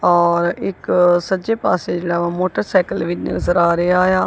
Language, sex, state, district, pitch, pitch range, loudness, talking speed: Punjabi, female, Punjab, Kapurthala, 175 Hz, 170-185 Hz, -17 LUFS, 155 wpm